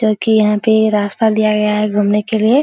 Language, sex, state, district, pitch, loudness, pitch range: Hindi, female, Bihar, Araria, 215 Hz, -14 LUFS, 210-220 Hz